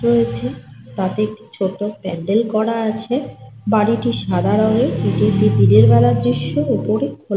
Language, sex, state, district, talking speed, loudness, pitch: Bengali, female, Jharkhand, Sahebganj, 155 wpm, -17 LUFS, 185 Hz